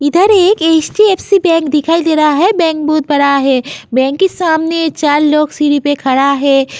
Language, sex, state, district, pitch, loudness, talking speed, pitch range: Hindi, female, Uttar Pradesh, Jyotiba Phule Nagar, 305 Hz, -11 LUFS, 185 wpm, 285-335 Hz